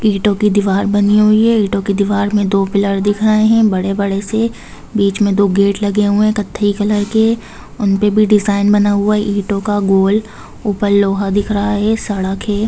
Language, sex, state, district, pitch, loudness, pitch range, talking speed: Hindi, female, Bihar, Gopalganj, 205 Hz, -14 LUFS, 200-210 Hz, 210 wpm